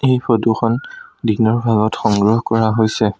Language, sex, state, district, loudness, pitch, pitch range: Assamese, male, Assam, Sonitpur, -16 LUFS, 110 Hz, 110-115 Hz